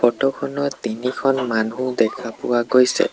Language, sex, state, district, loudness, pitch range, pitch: Assamese, male, Assam, Sonitpur, -20 LUFS, 120-135 Hz, 130 Hz